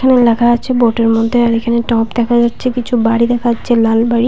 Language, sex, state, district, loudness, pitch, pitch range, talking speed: Bengali, female, West Bengal, Paschim Medinipur, -13 LUFS, 235 Hz, 230-240 Hz, 225 wpm